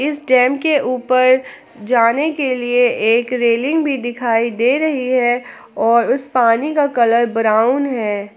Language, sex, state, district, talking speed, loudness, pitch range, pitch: Hindi, female, Jharkhand, Palamu, 150 wpm, -15 LUFS, 235-270 Hz, 250 Hz